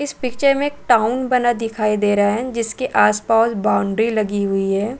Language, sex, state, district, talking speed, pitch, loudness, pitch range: Hindi, female, Chhattisgarh, Balrampur, 190 wpm, 225 Hz, -18 LUFS, 210-250 Hz